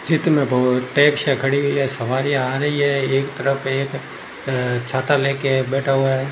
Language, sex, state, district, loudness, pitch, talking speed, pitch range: Hindi, male, Rajasthan, Bikaner, -19 LUFS, 135 Hz, 200 wpm, 130-140 Hz